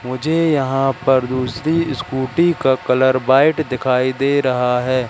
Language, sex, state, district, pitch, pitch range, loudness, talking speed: Hindi, male, Madhya Pradesh, Katni, 130 Hz, 130-145 Hz, -17 LUFS, 140 wpm